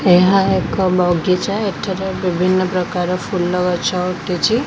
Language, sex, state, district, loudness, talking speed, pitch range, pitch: Odia, female, Odisha, Khordha, -17 LUFS, 115 wpm, 180-190 Hz, 185 Hz